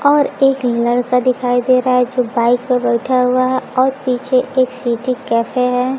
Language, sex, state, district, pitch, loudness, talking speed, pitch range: Hindi, female, Bihar, Kaimur, 250 Hz, -15 LUFS, 190 wpm, 245-255 Hz